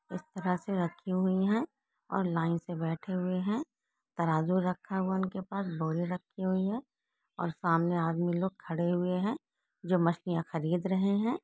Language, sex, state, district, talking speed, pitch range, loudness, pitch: Hindi, female, West Bengal, Kolkata, 175 wpm, 170-195 Hz, -32 LUFS, 185 Hz